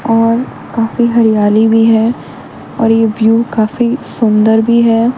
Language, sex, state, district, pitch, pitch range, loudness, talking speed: Hindi, female, Haryana, Rohtak, 225 Hz, 220-235 Hz, -11 LUFS, 140 wpm